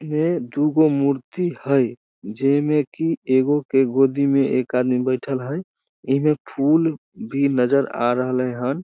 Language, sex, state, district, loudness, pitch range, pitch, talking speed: Maithili, male, Bihar, Samastipur, -20 LUFS, 130-150 Hz, 140 Hz, 150 wpm